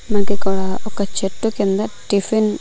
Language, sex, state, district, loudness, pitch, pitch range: Telugu, female, Andhra Pradesh, Manyam, -20 LUFS, 200 Hz, 195-215 Hz